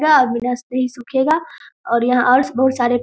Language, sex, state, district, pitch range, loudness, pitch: Hindi, female, Bihar, Darbhanga, 245-265 Hz, -17 LUFS, 250 Hz